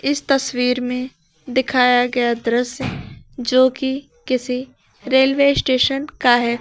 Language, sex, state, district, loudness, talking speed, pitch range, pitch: Hindi, female, Uttar Pradesh, Lucknow, -18 LUFS, 120 wpm, 245-270 Hz, 255 Hz